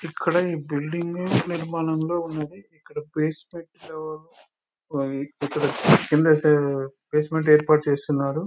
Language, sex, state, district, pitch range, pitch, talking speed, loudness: Telugu, male, Telangana, Nalgonda, 150-165 Hz, 155 Hz, 90 wpm, -23 LUFS